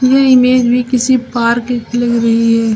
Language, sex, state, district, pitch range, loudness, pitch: Hindi, female, Uttar Pradesh, Lucknow, 235-250 Hz, -12 LUFS, 240 Hz